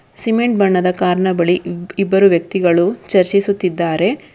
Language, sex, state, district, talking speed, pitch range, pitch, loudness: Kannada, female, Karnataka, Bangalore, 110 wpm, 175-195 Hz, 185 Hz, -15 LUFS